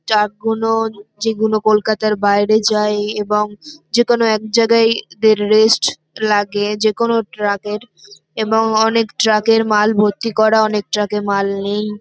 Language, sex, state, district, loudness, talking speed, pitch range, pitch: Bengali, female, West Bengal, North 24 Parganas, -15 LUFS, 145 wpm, 210-225 Hz, 215 Hz